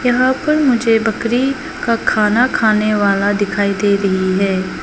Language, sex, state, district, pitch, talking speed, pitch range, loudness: Hindi, female, Arunachal Pradesh, Lower Dibang Valley, 215 Hz, 150 wpm, 200-250 Hz, -15 LUFS